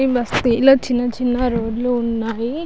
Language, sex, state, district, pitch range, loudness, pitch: Telugu, female, Andhra Pradesh, Chittoor, 235-250 Hz, -18 LUFS, 245 Hz